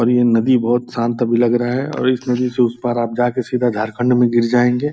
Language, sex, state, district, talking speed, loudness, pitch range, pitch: Hindi, male, Bihar, Purnia, 270 wpm, -17 LUFS, 120-125 Hz, 120 Hz